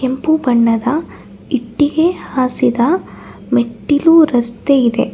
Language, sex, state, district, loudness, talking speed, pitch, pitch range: Kannada, female, Karnataka, Bangalore, -14 LUFS, 80 wpm, 260 Hz, 240-315 Hz